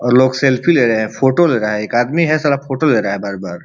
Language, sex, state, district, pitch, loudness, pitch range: Bhojpuri, male, Uttar Pradesh, Ghazipur, 130 Hz, -15 LUFS, 110-150 Hz